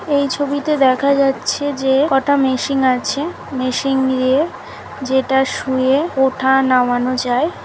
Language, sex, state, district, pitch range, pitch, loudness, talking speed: Bengali, female, West Bengal, Paschim Medinipur, 260-280 Hz, 265 Hz, -16 LUFS, 125 wpm